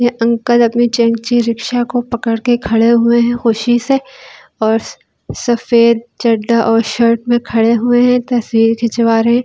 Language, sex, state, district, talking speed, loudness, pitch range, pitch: Hindi, female, Delhi, New Delhi, 150 wpm, -13 LUFS, 230-240 Hz, 235 Hz